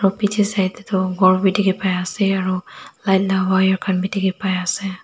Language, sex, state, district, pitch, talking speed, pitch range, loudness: Nagamese, female, Nagaland, Dimapur, 190 Hz, 120 wpm, 185-195 Hz, -19 LUFS